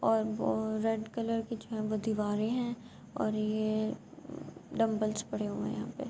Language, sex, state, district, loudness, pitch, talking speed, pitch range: Urdu, female, Andhra Pradesh, Anantapur, -33 LUFS, 215 Hz, 165 wpm, 215-225 Hz